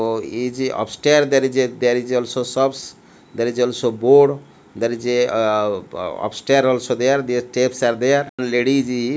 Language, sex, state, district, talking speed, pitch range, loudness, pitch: English, male, Odisha, Malkangiri, 190 wpm, 120-135 Hz, -18 LUFS, 125 Hz